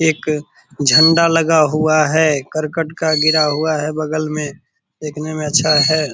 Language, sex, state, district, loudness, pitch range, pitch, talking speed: Hindi, male, Bihar, Purnia, -15 LUFS, 150-160 Hz, 155 Hz, 155 wpm